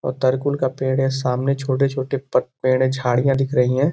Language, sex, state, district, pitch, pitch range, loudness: Hindi, male, Uttar Pradesh, Gorakhpur, 130 Hz, 130-135 Hz, -20 LUFS